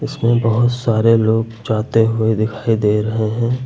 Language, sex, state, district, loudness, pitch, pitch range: Hindi, male, Uttar Pradesh, Lucknow, -16 LUFS, 115 Hz, 110-115 Hz